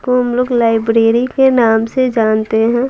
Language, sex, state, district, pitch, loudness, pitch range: Hindi, female, Bihar, Patna, 235 Hz, -13 LUFS, 225-250 Hz